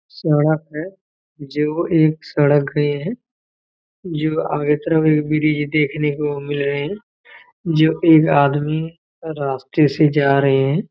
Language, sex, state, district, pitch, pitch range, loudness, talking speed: Hindi, male, Chhattisgarh, Raigarh, 155 Hz, 145-160 Hz, -18 LUFS, 145 wpm